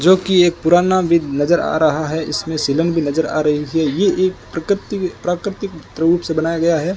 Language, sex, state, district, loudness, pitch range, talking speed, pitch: Hindi, male, Rajasthan, Bikaner, -17 LUFS, 160-185 Hz, 205 wpm, 165 Hz